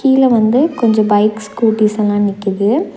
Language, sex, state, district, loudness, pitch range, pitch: Tamil, female, Tamil Nadu, Nilgiris, -13 LUFS, 210-240 Hz, 215 Hz